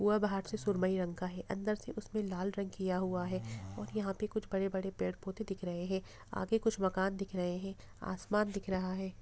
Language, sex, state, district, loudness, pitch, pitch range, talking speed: Hindi, female, Bihar, Gopalganj, -37 LUFS, 190 Hz, 185-205 Hz, 220 wpm